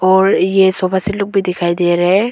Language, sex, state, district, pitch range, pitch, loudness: Hindi, female, Arunachal Pradesh, Longding, 180-195 Hz, 190 Hz, -14 LUFS